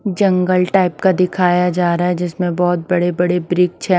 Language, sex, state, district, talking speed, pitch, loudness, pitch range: Hindi, female, Himachal Pradesh, Shimla, 195 wpm, 180 Hz, -16 LUFS, 175-185 Hz